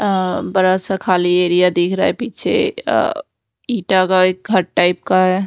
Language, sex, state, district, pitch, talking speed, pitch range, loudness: Hindi, female, Odisha, Nuapada, 185 Hz, 175 wpm, 180-195 Hz, -16 LUFS